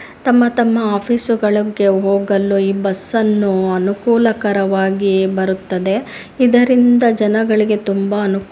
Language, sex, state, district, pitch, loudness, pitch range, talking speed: Kannada, female, Karnataka, Bijapur, 205 Hz, -15 LUFS, 195-230 Hz, 100 wpm